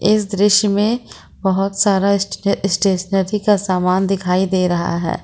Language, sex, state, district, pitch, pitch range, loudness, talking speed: Hindi, female, Jharkhand, Ranchi, 195 Hz, 185-205 Hz, -17 LUFS, 150 wpm